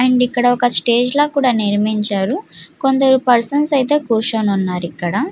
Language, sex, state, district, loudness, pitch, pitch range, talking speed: Telugu, female, Andhra Pradesh, Guntur, -16 LUFS, 245 Hz, 210-270 Hz, 135 wpm